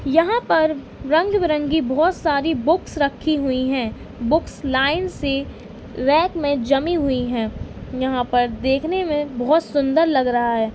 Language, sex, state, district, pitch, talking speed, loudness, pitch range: Hindi, female, Uttar Pradesh, Varanasi, 285 Hz, 150 wpm, -20 LUFS, 260-320 Hz